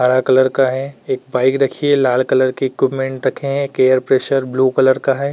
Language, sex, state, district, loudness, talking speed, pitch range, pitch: Hindi, male, Uttar Pradesh, Varanasi, -15 LUFS, 225 wpm, 130-135 Hz, 130 Hz